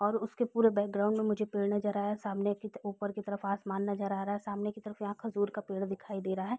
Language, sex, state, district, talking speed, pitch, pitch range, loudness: Hindi, female, Bihar, Gopalganj, 310 wpm, 205 Hz, 200-210 Hz, -34 LUFS